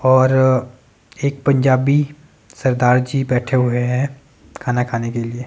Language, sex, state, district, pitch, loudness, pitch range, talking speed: Hindi, male, Himachal Pradesh, Shimla, 130 Hz, -17 LUFS, 125-135 Hz, 130 wpm